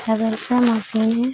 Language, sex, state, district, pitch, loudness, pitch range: Hindi, female, Jharkhand, Sahebganj, 225 Hz, -17 LUFS, 220-245 Hz